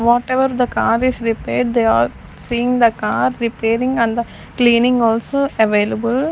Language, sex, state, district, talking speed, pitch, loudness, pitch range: English, female, Chandigarh, Chandigarh, 150 wpm, 235 Hz, -16 LUFS, 225-250 Hz